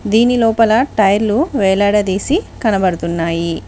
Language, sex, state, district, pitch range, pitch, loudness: Telugu, female, Telangana, Mahabubabad, 190-230 Hz, 210 Hz, -14 LUFS